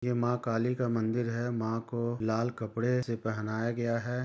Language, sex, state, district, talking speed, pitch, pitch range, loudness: Hindi, male, Jharkhand, Sahebganj, 195 wpm, 115 Hz, 115-120 Hz, -32 LUFS